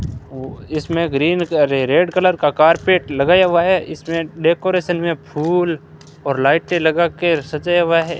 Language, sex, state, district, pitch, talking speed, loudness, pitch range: Hindi, male, Rajasthan, Bikaner, 165 Hz, 145 wpm, -16 LUFS, 150-175 Hz